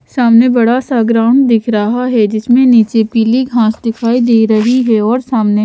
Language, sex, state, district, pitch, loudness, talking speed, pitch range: Hindi, female, Chhattisgarh, Raipur, 230 Hz, -11 LUFS, 180 wpm, 225-245 Hz